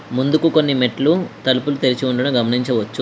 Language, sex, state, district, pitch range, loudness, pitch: Telugu, female, Telangana, Mahabubabad, 125-145 Hz, -17 LUFS, 130 Hz